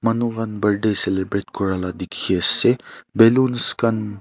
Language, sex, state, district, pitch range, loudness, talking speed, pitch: Nagamese, male, Nagaland, Kohima, 100-115 Hz, -18 LUFS, 140 wpm, 105 Hz